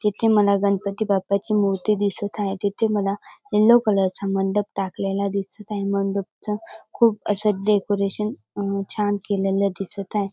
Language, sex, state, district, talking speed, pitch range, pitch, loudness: Marathi, female, Maharashtra, Dhule, 155 wpm, 195-210 Hz, 200 Hz, -22 LUFS